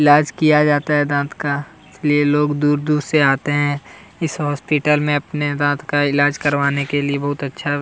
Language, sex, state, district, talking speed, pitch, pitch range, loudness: Hindi, male, Chhattisgarh, Kabirdham, 200 wpm, 145 Hz, 145-150 Hz, -18 LUFS